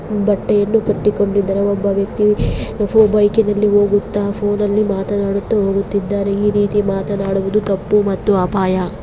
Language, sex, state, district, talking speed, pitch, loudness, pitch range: Kannada, female, Karnataka, Bellary, 115 wpm, 205 Hz, -16 LUFS, 200-210 Hz